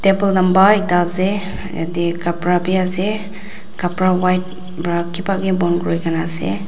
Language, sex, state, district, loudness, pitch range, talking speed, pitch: Nagamese, female, Nagaland, Dimapur, -16 LUFS, 170-190 Hz, 160 wpm, 180 Hz